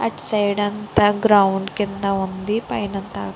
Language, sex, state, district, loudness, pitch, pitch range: Telugu, female, Andhra Pradesh, Srikakulam, -20 LUFS, 200 Hz, 195-205 Hz